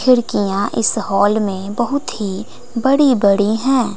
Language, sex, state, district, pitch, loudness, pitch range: Hindi, female, Bihar, West Champaran, 220 Hz, -16 LUFS, 200-250 Hz